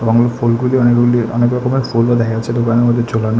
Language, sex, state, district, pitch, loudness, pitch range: Bengali, male, Tripura, West Tripura, 120 Hz, -14 LUFS, 115-120 Hz